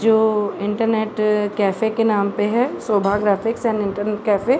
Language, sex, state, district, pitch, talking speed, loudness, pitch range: Hindi, female, Uttar Pradesh, Jalaun, 215 Hz, 155 wpm, -19 LUFS, 205-225 Hz